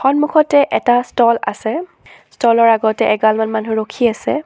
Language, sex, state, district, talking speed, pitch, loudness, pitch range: Assamese, female, Assam, Sonitpur, 145 wpm, 235 Hz, -15 LUFS, 220-285 Hz